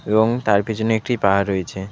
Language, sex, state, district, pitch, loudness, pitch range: Bengali, male, West Bengal, Alipurduar, 105 Hz, -19 LUFS, 100-110 Hz